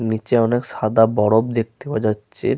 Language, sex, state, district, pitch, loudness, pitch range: Bengali, male, Jharkhand, Sahebganj, 115 Hz, -19 LUFS, 110-115 Hz